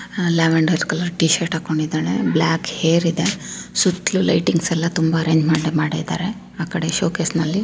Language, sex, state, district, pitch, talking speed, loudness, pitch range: Kannada, female, Karnataka, Chamarajanagar, 165 Hz, 135 wpm, -19 LUFS, 160-175 Hz